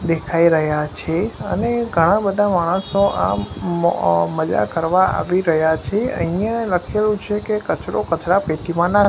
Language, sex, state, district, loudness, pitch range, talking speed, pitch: Gujarati, male, Gujarat, Gandhinagar, -19 LUFS, 160-205 Hz, 140 wpm, 175 Hz